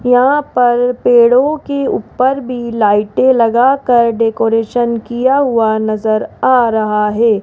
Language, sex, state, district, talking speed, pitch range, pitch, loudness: Hindi, female, Rajasthan, Jaipur, 120 wpm, 225-255 Hz, 240 Hz, -12 LUFS